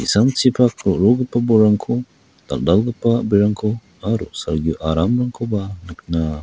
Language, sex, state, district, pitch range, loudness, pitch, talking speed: Garo, male, Meghalaya, West Garo Hills, 95-120 Hz, -18 LUFS, 110 Hz, 75 wpm